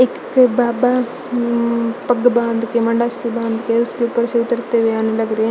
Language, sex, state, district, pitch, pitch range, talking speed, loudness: Hindi, female, Chandigarh, Chandigarh, 235 Hz, 230-240 Hz, 205 wpm, -17 LUFS